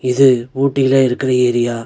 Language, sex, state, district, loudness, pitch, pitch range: Tamil, male, Tamil Nadu, Nilgiris, -14 LUFS, 130 Hz, 120-135 Hz